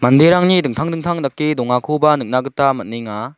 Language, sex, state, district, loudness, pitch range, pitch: Garo, male, Meghalaya, South Garo Hills, -16 LUFS, 125-160 Hz, 140 Hz